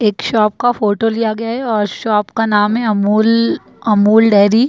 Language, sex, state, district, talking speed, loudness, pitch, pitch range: Hindi, female, Bihar, Jahanabad, 205 wpm, -14 LUFS, 220 Hz, 210-225 Hz